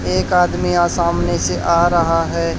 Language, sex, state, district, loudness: Hindi, male, Haryana, Charkhi Dadri, -16 LUFS